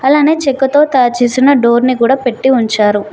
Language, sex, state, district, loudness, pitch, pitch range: Telugu, female, Telangana, Mahabubabad, -11 LUFS, 255 Hz, 240-275 Hz